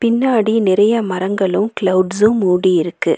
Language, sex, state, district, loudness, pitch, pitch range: Tamil, female, Tamil Nadu, Nilgiris, -15 LUFS, 200 Hz, 185-225 Hz